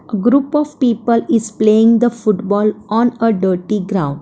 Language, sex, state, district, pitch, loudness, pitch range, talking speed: English, female, Gujarat, Valsad, 220 Hz, -15 LUFS, 205-235 Hz, 170 wpm